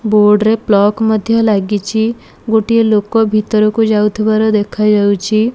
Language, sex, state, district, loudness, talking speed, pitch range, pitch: Odia, female, Odisha, Malkangiri, -12 LUFS, 110 wpm, 210-220 Hz, 215 Hz